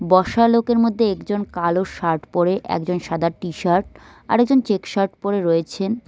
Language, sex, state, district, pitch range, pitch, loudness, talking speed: Bengali, female, West Bengal, Cooch Behar, 175-225 Hz, 190 Hz, -20 LUFS, 160 wpm